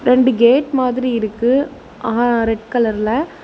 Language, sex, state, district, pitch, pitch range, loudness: Tamil, female, Tamil Nadu, Nilgiris, 240 Hz, 225-255 Hz, -16 LUFS